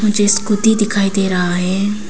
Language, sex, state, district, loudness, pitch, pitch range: Hindi, female, Arunachal Pradesh, Papum Pare, -15 LUFS, 205 Hz, 195-210 Hz